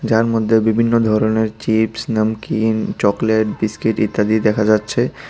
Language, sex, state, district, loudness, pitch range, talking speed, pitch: Bengali, male, Tripura, West Tripura, -17 LUFS, 110-115 Hz, 125 wpm, 110 Hz